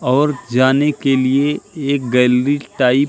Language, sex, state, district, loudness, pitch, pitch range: Hindi, male, Madhya Pradesh, Katni, -16 LUFS, 135 Hz, 125-145 Hz